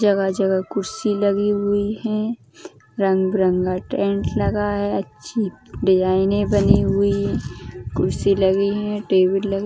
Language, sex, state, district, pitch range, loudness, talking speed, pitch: Hindi, female, Uttar Pradesh, Ghazipur, 190-205 Hz, -20 LUFS, 135 wpm, 200 Hz